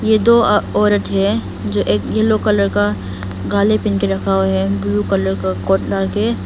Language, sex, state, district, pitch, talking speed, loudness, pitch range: Hindi, female, Arunachal Pradesh, Papum Pare, 100 Hz, 215 wpm, -16 LUFS, 95-105 Hz